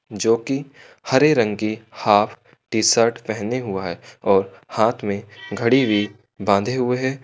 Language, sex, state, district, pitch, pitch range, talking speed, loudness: Hindi, male, Uttar Pradesh, Lucknow, 110 Hz, 100-125 Hz, 140 wpm, -20 LUFS